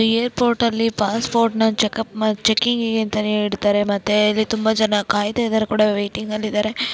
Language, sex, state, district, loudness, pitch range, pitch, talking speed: Kannada, female, Karnataka, Belgaum, -19 LUFS, 210-225 Hz, 215 Hz, 140 wpm